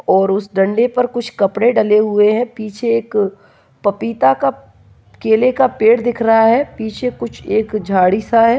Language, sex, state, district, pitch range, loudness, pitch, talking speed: Hindi, female, Bihar, Kishanganj, 195-235 Hz, -15 LUFS, 220 Hz, 170 wpm